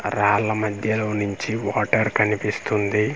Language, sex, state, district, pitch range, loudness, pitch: Telugu, male, Andhra Pradesh, Manyam, 105-110 Hz, -22 LUFS, 105 Hz